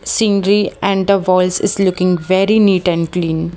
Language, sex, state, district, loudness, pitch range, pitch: English, female, Haryana, Jhajjar, -14 LUFS, 180-200 Hz, 190 Hz